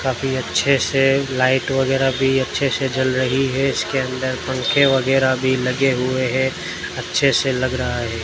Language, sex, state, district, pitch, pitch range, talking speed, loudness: Hindi, male, Rajasthan, Bikaner, 130 Hz, 130-135 Hz, 175 wpm, -18 LUFS